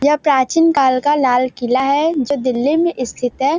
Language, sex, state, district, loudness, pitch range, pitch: Hindi, female, Uttar Pradesh, Varanasi, -15 LUFS, 255-295 Hz, 275 Hz